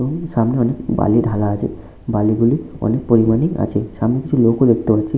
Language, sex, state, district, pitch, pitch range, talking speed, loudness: Bengali, male, West Bengal, Malda, 115 Hz, 110-125 Hz, 185 wpm, -17 LUFS